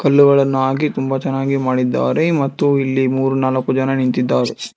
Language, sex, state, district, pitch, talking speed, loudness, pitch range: Kannada, male, Karnataka, Bangalore, 135 Hz, 140 wpm, -16 LUFS, 130-140 Hz